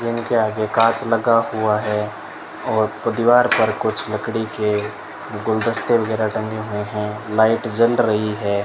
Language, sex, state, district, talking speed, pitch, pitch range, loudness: Hindi, male, Rajasthan, Bikaner, 145 wpm, 110 Hz, 105-115 Hz, -19 LUFS